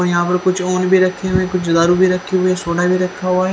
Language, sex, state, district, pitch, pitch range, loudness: Hindi, female, Haryana, Charkhi Dadri, 185 Hz, 180-185 Hz, -16 LUFS